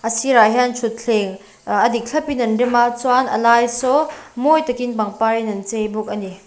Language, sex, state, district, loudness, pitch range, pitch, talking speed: Mizo, female, Mizoram, Aizawl, -17 LUFS, 215-250 Hz, 235 Hz, 215 wpm